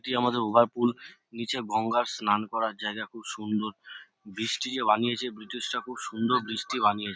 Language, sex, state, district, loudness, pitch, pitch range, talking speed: Bengali, male, West Bengal, North 24 Parganas, -28 LUFS, 115 Hz, 110-120 Hz, 185 wpm